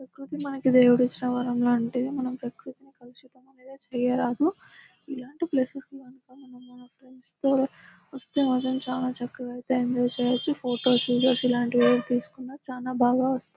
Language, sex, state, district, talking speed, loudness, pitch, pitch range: Telugu, female, Telangana, Nalgonda, 140 wpm, -25 LUFS, 255 Hz, 245-270 Hz